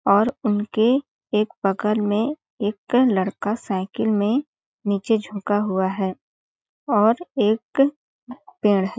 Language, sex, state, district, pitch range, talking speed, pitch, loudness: Hindi, female, Chhattisgarh, Balrampur, 200-245 Hz, 115 wpm, 210 Hz, -22 LUFS